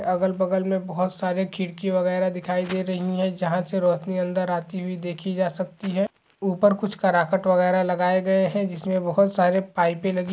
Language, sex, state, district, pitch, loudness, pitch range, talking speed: Hindi, male, Chhattisgarh, Raigarh, 185 Hz, -23 LUFS, 180-190 Hz, 195 wpm